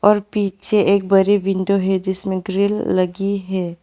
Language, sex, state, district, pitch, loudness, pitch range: Hindi, female, West Bengal, Alipurduar, 195 Hz, -17 LUFS, 190-200 Hz